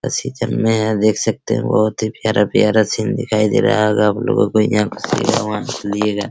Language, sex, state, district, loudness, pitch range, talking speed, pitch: Hindi, male, Bihar, Araria, -17 LUFS, 105-110 Hz, 190 wpm, 110 Hz